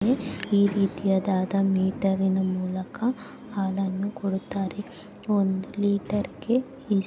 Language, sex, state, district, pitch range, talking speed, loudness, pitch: Kannada, female, Karnataka, Dharwad, 190-205 Hz, 70 wpm, -26 LUFS, 200 Hz